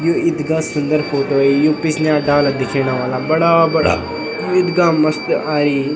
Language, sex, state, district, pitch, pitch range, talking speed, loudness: Garhwali, male, Uttarakhand, Tehri Garhwal, 155 Hz, 140-160 Hz, 140 wpm, -16 LUFS